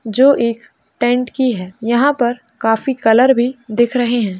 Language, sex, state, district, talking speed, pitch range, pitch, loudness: Hindi, female, Uttar Pradesh, Hamirpur, 175 wpm, 225-250 Hz, 240 Hz, -15 LUFS